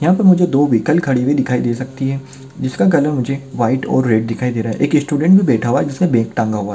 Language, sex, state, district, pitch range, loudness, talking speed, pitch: Hindi, male, Maharashtra, Chandrapur, 120-145 Hz, -15 LUFS, 285 wpm, 135 Hz